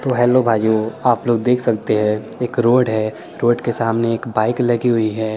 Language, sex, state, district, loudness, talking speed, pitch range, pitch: Hindi, male, Chandigarh, Chandigarh, -17 LUFS, 225 wpm, 110-120 Hz, 115 Hz